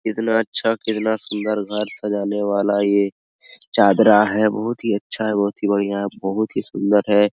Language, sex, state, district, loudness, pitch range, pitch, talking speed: Hindi, male, Bihar, Araria, -19 LUFS, 100-110 Hz, 105 Hz, 165 wpm